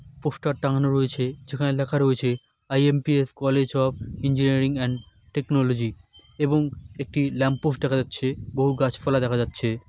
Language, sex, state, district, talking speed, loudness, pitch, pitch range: Bengali, male, West Bengal, Malda, 135 wpm, -24 LUFS, 135 Hz, 125-140 Hz